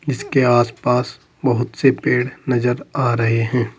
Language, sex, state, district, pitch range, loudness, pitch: Hindi, male, Uttar Pradesh, Saharanpur, 120-130 Hz, -18 LUFS, 125 Hz